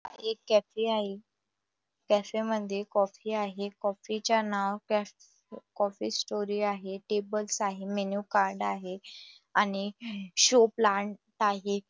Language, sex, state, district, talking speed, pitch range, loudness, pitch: Marathi, female, Maharashtra, Nagpur, 110 wpm, 200-215 Hz, -30 LUFS, 205 Hz